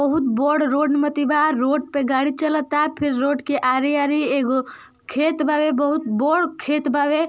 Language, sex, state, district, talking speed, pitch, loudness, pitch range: Bhojpuri, female, Uttar Pradesh, Ghazipur, 175 wpm, 290 Hz, -20 LUFS, 275-300 Hz